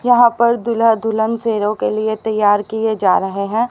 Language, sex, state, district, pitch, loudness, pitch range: Hindi, female, Haryana, Rohtak, 220 Hz, -16 LUFS, 210-230 Hz